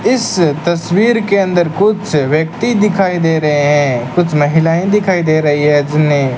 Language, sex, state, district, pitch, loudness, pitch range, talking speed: Hindi, male, Rajasthan, Bikaner, 165 Hz, -13 LUFS, 150-195 Hz, 160 wpm